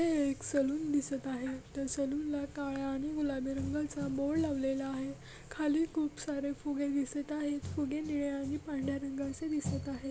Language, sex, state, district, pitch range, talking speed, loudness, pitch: Marathi, female, Maharashtra, Dhule, 275-295 Hz, 165 wpm, -35 LUFS, 285 Hz